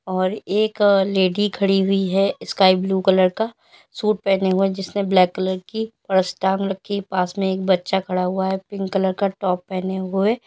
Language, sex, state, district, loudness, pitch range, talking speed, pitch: Hindi, female, Uttar Pradesh, Lalitpur, -20 LUFS, 185-200 Hz, 200 wpm, 195 Hz